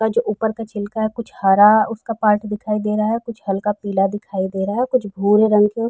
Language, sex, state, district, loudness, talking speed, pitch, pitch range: Hindi, female, Uttar Pradesh, Jalaun, -18 LUFS, 265 wpm, 210 Hz, 205-225 Hz